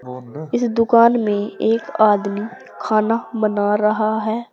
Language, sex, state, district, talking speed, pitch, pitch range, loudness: Hindi, female, Uttar Pradesh, Saharanpur, 120 wpm, 215 Hz, 205-230 Hz, -18 LUFS